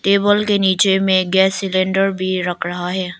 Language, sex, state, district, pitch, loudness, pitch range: Hindi, female, Arunachal Pradesh, Lower Dibang Valley, 190 Hz, -16 LUFS, 185-195 Hz